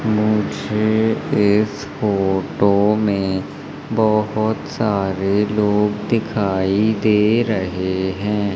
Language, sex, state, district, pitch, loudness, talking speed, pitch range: Hindi, female, Madhya Pradesh, Umaria, 105 Hz, -18 LUFS, 75 wpm, 100-110 Hz